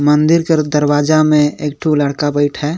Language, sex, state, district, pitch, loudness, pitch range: Sadri, male, Chhattisgarh, Jashpur, 150 Hz, -14 LUFS, 145-155 Hz